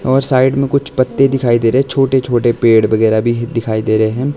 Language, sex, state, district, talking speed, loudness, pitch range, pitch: Hindi, male, Himachal Pradesh, Shimla, 260 wpm, -13 LUFS, 115-135 Hz, 120 Hz